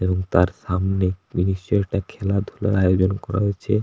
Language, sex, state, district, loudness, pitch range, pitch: Bengali, male, West Bengal, Paschim Medinipur, -22 LUFS, 95-100 Hz, 95 Hz